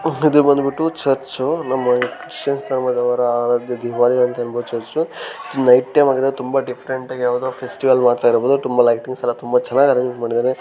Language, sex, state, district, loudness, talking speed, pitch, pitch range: Kannada, male, Karnataka, Gulbarga, -18 LUFS, 130 wpm, 125 Hz, 120-135 Hz